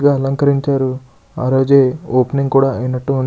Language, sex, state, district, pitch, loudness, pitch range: Telugu, male, Andhra Pradesh, Srikakulam, 135 Hz, -15 LUFS, 130-140 Hz